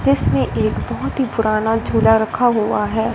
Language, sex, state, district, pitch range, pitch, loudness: Hindi, female, Punjab, Fazilka, 135-225 Hz, 215 Hz, -17 LUFS